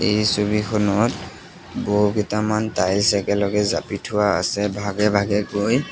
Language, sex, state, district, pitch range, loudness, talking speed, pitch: Assamese, male, Assam, Sonitpur, 100-105 Hz, -20 LUFS, 120 wpm, 105 Hz